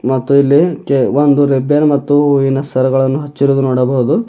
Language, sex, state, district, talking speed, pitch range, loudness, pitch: Kannada, male, Karnataka, Bidar, 140 wpm, 135-145 Hz, -12 LUFS, 140 Hz